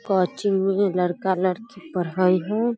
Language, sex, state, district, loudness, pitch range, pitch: Maithili, female, Bihar, Samastipur, -23 LUFS, 180-200 Hz, 190 Hz